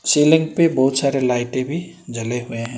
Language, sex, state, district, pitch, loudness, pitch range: Hindi, male, Karnataka, Bangalore, 135 Hz, -18 LUFS, 120-160 Hz